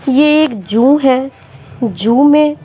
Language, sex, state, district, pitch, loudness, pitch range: Hindi, female, Bihar, Patna, 270 Hz, -11 LUFS, 235-295 Hz